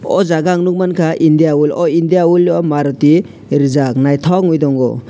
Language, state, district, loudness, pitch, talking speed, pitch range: Kokborok, Tripura, West Tripura, -12 LUFS, 160 Hz, 175 wpm, 145-175 Hz